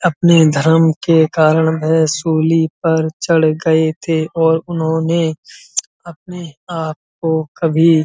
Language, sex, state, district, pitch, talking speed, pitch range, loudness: Hindi, male, Uttar Pradesh, Muzaffarnagar, 160 Hz, 125 wpm, 160-165 Hz, -15 LUFS